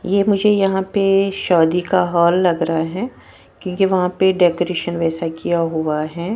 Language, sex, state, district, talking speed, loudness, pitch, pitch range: Hindi, female, Punjab, Kapurthala, 170 wpm, -17 LUFS, 180 Hz, 170-195 Hz